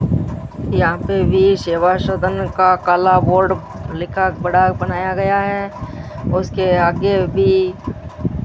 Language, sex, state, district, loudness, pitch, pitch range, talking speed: Hindi, female, Rajasthan, Bikaner, -16 LUFS, 185 Hz, 180-190 Hz, 120 wpm